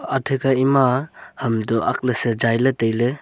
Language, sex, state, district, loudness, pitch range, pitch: Wancho, male, Arunachal Pradesh, Longding, -18 LUFS, 115-135 Hz, 125 Hz